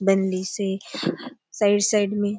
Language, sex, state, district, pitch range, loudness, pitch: Halbi, female, Chhattisgarh, Bastar, 190-205 Hz, -23 LUFS, 205 Hz